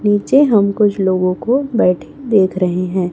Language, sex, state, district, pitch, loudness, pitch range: Hindi, female, Chhattisgarh, Raipur, 200 Hz, -15 LUFS, 185-225 Hz